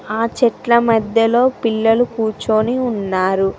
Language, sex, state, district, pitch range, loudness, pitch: Telugu, female, Telangana, Mahabubabad, 215-235 Hz, -16 LUFS, 225 Hz